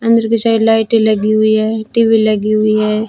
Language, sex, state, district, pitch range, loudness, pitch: Hindi, female, Rajasthan, Jaisalmer, 215-225 Hz, -12 LUFS, 220 Hz